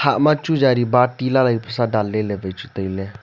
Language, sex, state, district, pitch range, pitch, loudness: Wancho, male, Arunachal Pradesh, Longding, 105-135 Hz, 120 Hz, -19 LUFS